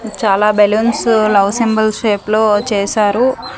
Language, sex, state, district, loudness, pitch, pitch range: Telugu, female, Andhra Pradesh, Manyam, -13 LUFS, 215 Hz, 205-220 Hz